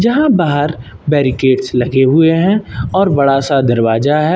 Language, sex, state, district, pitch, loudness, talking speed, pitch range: Hindi, male, Uttar Pradesh, Lucknow, 145 Hz, -13 LUFS, 150 wpm, 130-165 Hz